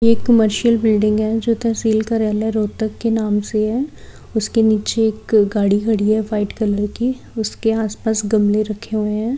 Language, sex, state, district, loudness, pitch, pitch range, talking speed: Hindi, female, Haryana, Rohtak, -18 LUFS, 220 Hz, 210-225 Hz, 180 wpm